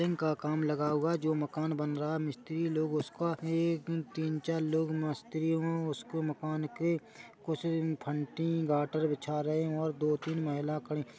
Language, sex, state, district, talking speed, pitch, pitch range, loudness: Hindi, male, Chhattisgarh, Korba, 160 wpm, 155 Hz, 150-160 Hz, -33 LUFS